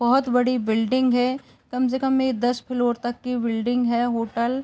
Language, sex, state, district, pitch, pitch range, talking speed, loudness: Hindi, female, Uttar Pradesh, Etah, 245 Hz, 235-255 Hz, 205 wpm, -23 LUFS